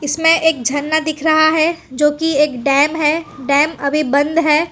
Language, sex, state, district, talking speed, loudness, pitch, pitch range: Hindi, female, Gujarat, Valsad, 190 wpm, -15 LUFS, 300 Hz, 285-320 Hz